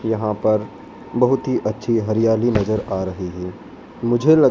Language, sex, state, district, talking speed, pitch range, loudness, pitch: Hindi, male, Madhya Pradesh, Dhar, 160 wpm, 105-120 Hz, -20 LUFS, 110 Hz